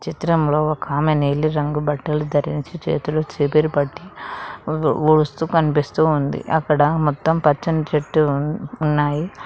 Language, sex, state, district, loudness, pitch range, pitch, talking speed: Telugu, female, Telangana, Mahabubabad, -19 LUFS, 150-160 Hz, 155 Hz, 120 wpm